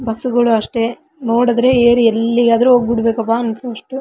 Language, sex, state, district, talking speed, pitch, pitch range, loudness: Kannada, female, Karnataka, Raichur, 135 wpm, 235 Hz, 230-245 Hz, -14 LUFS